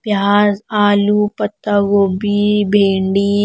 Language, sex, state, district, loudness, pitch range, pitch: Hindi, female, Punjab, Pathankot, -14 LUFS, 200-210 Hz, 205 Hz